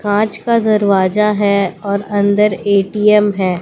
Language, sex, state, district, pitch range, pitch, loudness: Hindi, female, Bihar, West Champaran, 200-210 Hz, 205 Hz, -14 LUFS